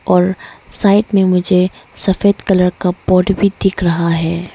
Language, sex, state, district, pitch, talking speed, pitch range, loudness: Hindi, female, Arunachal Pradesh, Lower Dibang Valley, 185 Hz, 160 wpm, 180-195 Hz, -14 LUFS